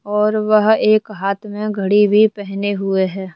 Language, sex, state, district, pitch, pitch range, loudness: Hindi, male, Rajasthan, Jaipur, 210 Hz, 195-215 Hz, -16 LUFS